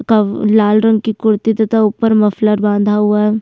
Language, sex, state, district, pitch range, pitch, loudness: Hindi, female, Uttarakhand, Tehri Garhwal, 210-220 Hz, 215 Hz, -13 LUFS